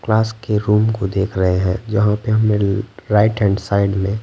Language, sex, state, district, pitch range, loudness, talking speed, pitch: Hindi, male, Bihar, Patna, 100-110 Hz, -17 LUFS, 200 wpm, 105 Hz